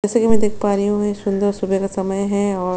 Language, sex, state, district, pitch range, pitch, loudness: Hindi, female, Chhattisgarh, Sukma, 195-205 Hz, 200 Hz, -19 LUFS